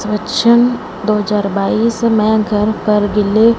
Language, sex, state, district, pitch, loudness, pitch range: Hindi, female, Punjab, Fazilka, 215 Hz, -14 LUFS, 210-230 Hz